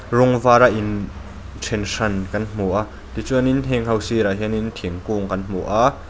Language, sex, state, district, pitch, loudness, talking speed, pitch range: Mizo, male, Mizoram, Aizawl, 110 Hz, -20 LUFS, 155 wpm, 95-115 Hz